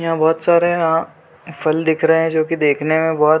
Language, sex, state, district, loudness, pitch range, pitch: Hindi, male, Chhattisgarh, Bilaspur, -16 LUFS, 155-165 Hz, 160 Hz